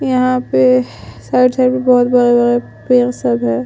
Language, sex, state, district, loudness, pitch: Hindi, female, Chhattisgarh, Sukma, -13 LUFS, 245 Hz